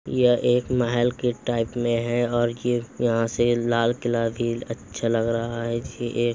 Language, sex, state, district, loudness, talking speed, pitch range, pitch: Hindi, male, Uttar Pradesh, Hamirpur, -24 LUFS, 190 wpm, 115-120 Hz, 120 Hz